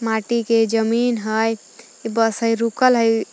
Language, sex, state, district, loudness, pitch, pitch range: Magahi, female, Jharkhand, Palamu, -19 LUFS, 225 Hz, 225-230 Hz